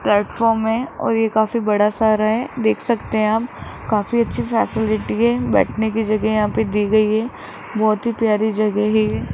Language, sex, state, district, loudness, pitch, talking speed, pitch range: Hindi, male, Rajasthan, Jaipur, -18 LUFS, 220 Hz, 200 wpm, 215-225 Hz